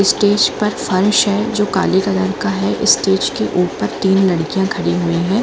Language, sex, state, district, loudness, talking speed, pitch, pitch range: Hindi, female, Jharkhand, Jamtara, -15 LUFS, 175 wpm, 195 Hz, 185-205 Hz